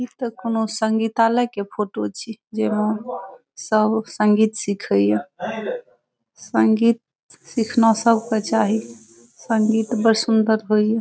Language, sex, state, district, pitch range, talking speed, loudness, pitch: Maithili, female, Bihar, Saharsa, 210-230 Hz, 120 wpm, -20 LUFS, 220 Hz